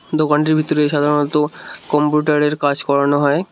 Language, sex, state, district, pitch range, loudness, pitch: Bengali, male, West Bengal, Cooch Behar, 145-150 Hz, -16 LUFS, 150 Hz